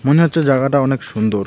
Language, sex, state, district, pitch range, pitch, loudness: Bengali, male, West Bengal, Alipurduar, 120-145 Hz, 135 Hz, -15 LUFS